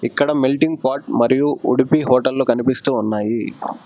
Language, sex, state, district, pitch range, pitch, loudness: Telugu, male, Telangana, Hyderabad, 125-145 Hz, 130 Hz, -17 LUFS